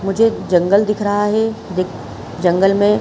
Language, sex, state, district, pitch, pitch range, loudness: Hindi, female, Chhattisgarh, Bilaspur, 195 Hz, 180-210 Hz, -16 LUFS